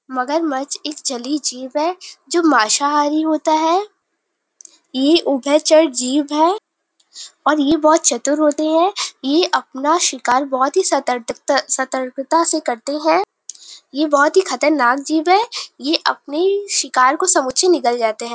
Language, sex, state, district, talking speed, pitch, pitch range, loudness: Hindi, female, Uttar Pradesh, Varanasi, 135 wpm, 300 Hz, 270-330 Hz, -16 LUFS